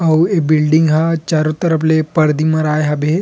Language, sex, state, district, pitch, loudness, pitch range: Chhattisgarhi, male, Chhattisgarh, Rajnandgaon, 155 Hz, -14 LUFS, 155-160 Hz